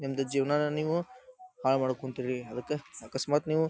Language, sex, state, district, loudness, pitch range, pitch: Kannada, male, Karnataka, Dharwad, -31 LUFS, 130-155 Hz, 140 Hz